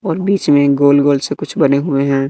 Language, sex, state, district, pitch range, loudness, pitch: Hindi, male, Bihar, West Champaran, 140-155 Hz, -13 LUFS, 145 Hz